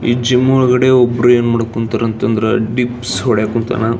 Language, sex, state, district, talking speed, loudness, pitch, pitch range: Kannada, male, Karnataka, Belgaum, 195 wpm, -14 LUFS, 120 Hz, 115-125 Hz